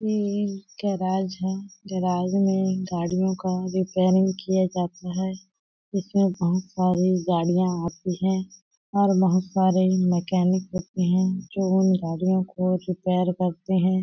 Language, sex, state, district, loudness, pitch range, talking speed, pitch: Hindi, female, Chhattisgarh, Balrampur, -24 LUFS, 180-190 Hz, 130 wpm, 185 Hz